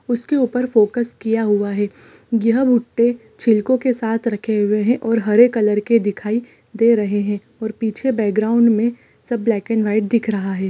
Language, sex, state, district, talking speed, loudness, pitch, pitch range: Hindi, female, Chhattisgarh, Rajnandgaon, 180 wpm, -18 LUFS, 225 Hz, 210-235 Hz